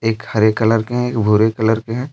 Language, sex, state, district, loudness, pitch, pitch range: Hindi, male, Jharkhand, Deoghar, -16 LUFS, 110 Hz, 110-115 Hz